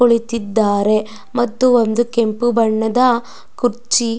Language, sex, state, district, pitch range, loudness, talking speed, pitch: Kannada, female, Karnataka, Dakshina Kannada, 220-240 Hz, -16 LUFS, 85 wpm, 235 Hz